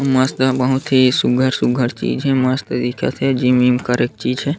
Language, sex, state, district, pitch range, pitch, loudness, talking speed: Chhattisgarhi, male, Chhattisgarh, Sarguja, 125-130 Hz, 130 Hz, -17 LUFS, 195 wpm